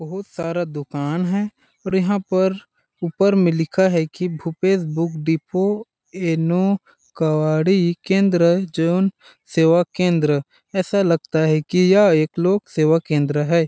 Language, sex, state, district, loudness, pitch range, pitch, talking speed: Hindi, male, Chhattisgarh, Balrampur, -19 LUFS, 160-190 Hz, 175 Hz, 135 wpm